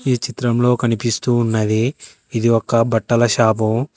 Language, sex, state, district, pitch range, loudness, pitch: Telugu, female, Telangana, Hyderabad, 115-120 Hz, -17 LUFS, 115 Hz